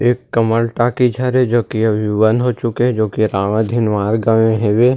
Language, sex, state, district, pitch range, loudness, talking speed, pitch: Chhattisgarhi, male, Chhattisgarh, Rajnandgaon, 110-120 Hz, -15 LUFS, 205 wpm, 115 Hz